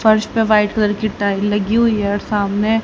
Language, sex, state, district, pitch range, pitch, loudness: Hindi, female, Haryana, Rohtak, 205-220 Hz, 210 Hz, -16 LUFS